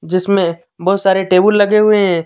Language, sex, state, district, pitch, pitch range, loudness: Hindi, male, Jharkhand, Deoghar, 190 Hz, 185-205 Hz, -13 LUFS